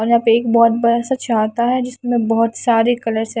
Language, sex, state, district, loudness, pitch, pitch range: Hindi, female, Bihar, Katihar, -16 LUFS, 230 Hz, 225-240 Hz